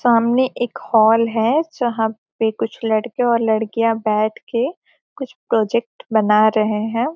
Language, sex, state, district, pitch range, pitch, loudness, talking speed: Hindi, female, Bihar, Gopalganj, 220-240 Hz, 230 Hz, -18 LUFS, 140 wpm